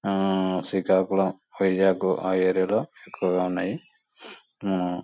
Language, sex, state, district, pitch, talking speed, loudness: Telugu, male, Andhra Pradesh, Anantapur, 95 Hz, 95 wpm, -25 LUFS